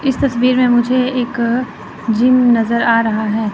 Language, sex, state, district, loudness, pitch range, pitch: Hindi, female, Chandigarh, Chandigarh, -14 LUFS, 230-255 Hz, 240 Hz